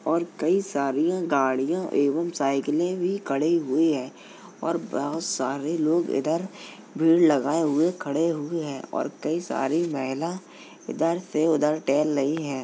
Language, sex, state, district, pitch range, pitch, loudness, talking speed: Hindi, male, Uttar Pradesh, Jalaun, 140-170 Hz, 160 Hz, -25 LUFS, 150 wpm